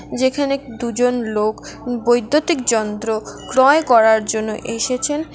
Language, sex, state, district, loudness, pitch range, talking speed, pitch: Bengali, female, West Bengal, Alipurduar, -18 LUFS, 220-260 Hz, 100 wpm, 240 Hz